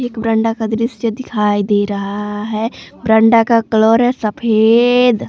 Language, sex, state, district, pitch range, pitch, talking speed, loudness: Hindi, female, Jharkhand, Palamu, 215-230 Hz, 225 Hz, 135 wpm, -14 LUFS